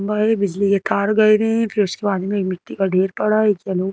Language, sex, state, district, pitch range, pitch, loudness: Hindi, female, Madhya Pradesh, Bhopal, 195-215 Hz, 200 Hz, -18 LUFS